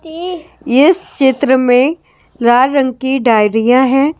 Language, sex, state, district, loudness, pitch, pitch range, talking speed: Hindi, male, Delhi, New Delhi, -12 LUFS, 265 Hz, 250-310 Hz, 145 wpm